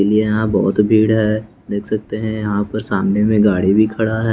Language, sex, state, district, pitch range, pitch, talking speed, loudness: Hindi, male, Bihar, West Champaran, 100-110 Hz, 110 Hz, 220 wpm, -16 LUFS